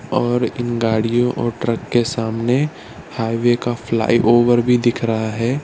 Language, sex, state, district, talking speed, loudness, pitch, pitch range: Hindi, male, Gujarat, Valsad, 150 wpm, -18 LUFS, 120 Hz, 115-120 Hz